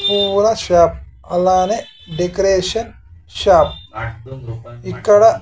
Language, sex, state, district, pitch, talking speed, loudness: Telugu, male, Andhra Pradesh, Sri Satya Sai, 175 Hz, 65 wpm, -15 LUFS